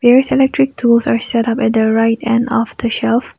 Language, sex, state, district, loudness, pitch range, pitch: English, female, Nagaland, Kohima, -14 LUFS, 230-245 Hz, 235 Hz